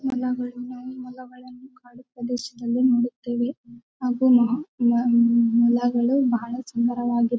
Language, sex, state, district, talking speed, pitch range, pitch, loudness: Kannada, female, Karnataka, Bellary, 90 wpm, 240-255 Hz, 245 Hz, -22 LUFS